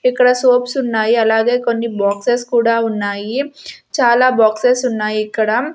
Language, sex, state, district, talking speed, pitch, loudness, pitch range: Telugu, female, Andhra Pradesh, Sri Satya Sai, 125 wpm, 235 Hz, -15 LUFS, 220-250 Hz